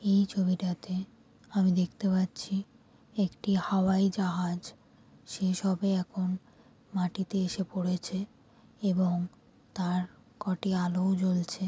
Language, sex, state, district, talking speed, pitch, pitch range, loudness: Bengali, female, West Bengal, Jalpaiguri, 95 wpm, 190 Hz, 180-195 Hz, -31 LUFS